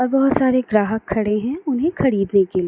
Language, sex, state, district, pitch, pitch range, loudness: Hindi, female, Jharkhand, Jamtara, 220 Hz, 205-265 Hz, -19 LUFS